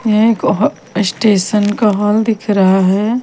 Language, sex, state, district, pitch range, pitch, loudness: Hindi, female, Haryana, Rohtak, 200-220 Hz, 210 Hz, -13 LUFS